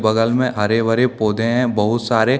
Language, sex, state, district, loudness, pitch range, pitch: Hindi, male, Jharkhand, Deoghar, -17 LUFS, 110-125 Hz, 115 Hz